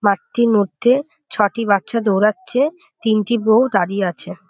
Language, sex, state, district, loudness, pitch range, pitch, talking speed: Bengali, female, West Bengal, Jhargram, -17 LUFS, 200-245 Hz, 220 Hz, 120 wpm